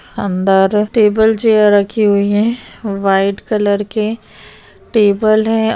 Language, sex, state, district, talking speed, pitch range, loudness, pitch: Hindi, female, Maharashtra, Chandrapur, 115 wpm, 200-220 Hz, -13 LUFS, 210 Hz